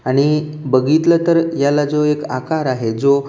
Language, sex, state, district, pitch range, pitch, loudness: Marathi, male, Maharashtra, Aurangabad, 135-155 Hz, 145 Hz, -16 LUFS